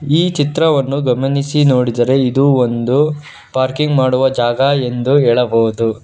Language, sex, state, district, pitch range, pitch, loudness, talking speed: Kannada, male, Karnataka, Bangalore, 125-145 Hz, 135 Hz, -14 LUFS, 110 wpm